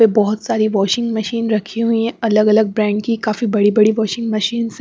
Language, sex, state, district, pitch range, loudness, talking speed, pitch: Hindi, female, Bihar, West Champaran, 215-230 Hz, -16 LUFS, 200 wpm, 220 Hz